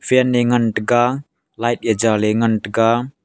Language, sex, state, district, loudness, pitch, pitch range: Wancho, male, Arunachal Pradesh, Longding, -17 LUFS, 120 Hz, 110-120 Hz